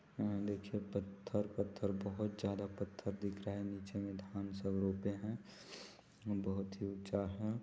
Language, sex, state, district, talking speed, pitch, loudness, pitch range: Hindi, male, Chhattisgarh, Balrampur, 155 wpm, 100 Hz, -42 LUFS, 100-105 Hz